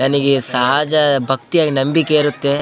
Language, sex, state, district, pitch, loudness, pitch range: Kannada, male, Karnataka, Bellary, 140 Hz, -15 LUFS, 135-150 Hz